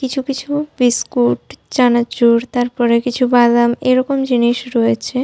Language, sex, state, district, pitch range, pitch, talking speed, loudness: Bengali, female, West Bengal, Jhargram, 235-255 Hz, 245 Hz, 115 wpm, -15 LUFS